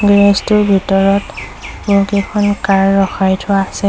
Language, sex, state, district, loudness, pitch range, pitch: Assamese, female, Assam, Sonitpur, -13 LUFS, 195-205 Hz, 200 Hz